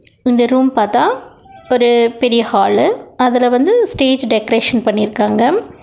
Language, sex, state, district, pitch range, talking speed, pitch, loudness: Tamil, female, Tamil Nadu, Nilgiris, 230-255 Hz, 115 wpm, 240 Hz, -13 LUFS